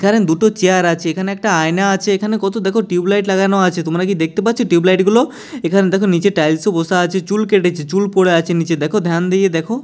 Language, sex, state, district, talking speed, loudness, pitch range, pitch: Bengali, male, West Bengal, Jalpaiguri, 230 wpm, -15 LUFS, 170-205 Hz, 190 Hz